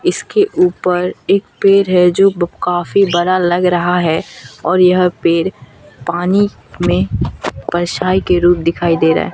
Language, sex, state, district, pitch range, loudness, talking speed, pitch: Hindi, female, Bihar, Katihar, 175-190 Hz, -14 LUFS, 155 wpm, 180 Hz